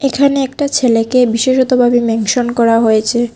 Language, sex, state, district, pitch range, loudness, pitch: Bengali, female, Tripura, West Tripura, 230-260 Hz, -12 LUFS, 245 Hz